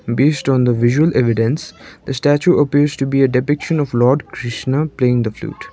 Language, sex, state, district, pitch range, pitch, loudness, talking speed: English, male, Sikkim, Gangtok, 120-145 Hz, 135 Hz, -16 LUFS, 190 wpm